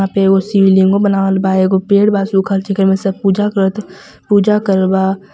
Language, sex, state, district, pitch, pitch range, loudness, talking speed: Bhojpuri, female, Jharkhand, Palamu, 195 Hz, 190-200 Hz, -13 LUFS, 215 wpm